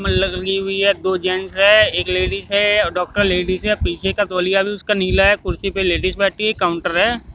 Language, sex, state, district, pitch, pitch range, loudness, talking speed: Hindi, male, Haryana, Jhajjar, 195 Hz, 185-205 Hz, -17 LUFS, 195 wpm